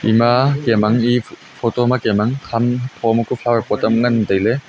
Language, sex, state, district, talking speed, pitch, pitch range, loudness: Wancho, male, Arunachal Pradesh, Longding, 205 wpm, 120 Hz, 115-125 Hz, -17 LUFS